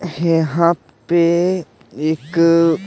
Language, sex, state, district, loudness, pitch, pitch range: Hindi, male, Bihar, Patna, -17 LUFS, 165 Hz, 160-170 Hz